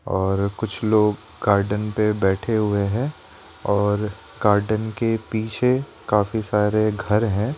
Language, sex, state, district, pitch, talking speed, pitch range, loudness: Hindi, male, Rajasthan, Jaipur, 105 Hz, 125 wpm, 105-110 Hz, -22 LUFS